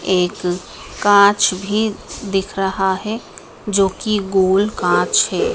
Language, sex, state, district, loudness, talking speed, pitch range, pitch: Hindi, female, Madhya Pradesh, Dhar, -17 LUFS, 120 wpm, 190-210 Hz, 195 Hz